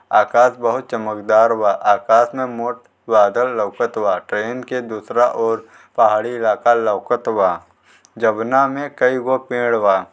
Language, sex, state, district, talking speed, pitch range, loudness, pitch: Bhojpuri, male, Bihar, Gopalganj, 135 wpm, 115-125 Hz, -17 LUFS, 120 Hz